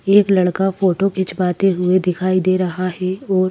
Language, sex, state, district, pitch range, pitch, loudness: Hindi, female, Madhya Pradesh, Bhopal, 185-195 Hz, 185 Hz, -17 LUFS